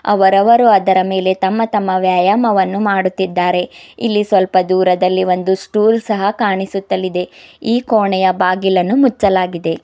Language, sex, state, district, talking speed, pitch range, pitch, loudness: Kannada, female, Karnataka, Bidar, 110 wpm, 185-210 Hz, 190 Hz, -14 LUFS